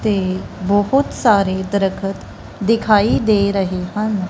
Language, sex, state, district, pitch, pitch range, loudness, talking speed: Punjabi, female, Punjab, Kapurthala, 200 Hz, 190-215 Hz, -17 LUFS, 110 wpm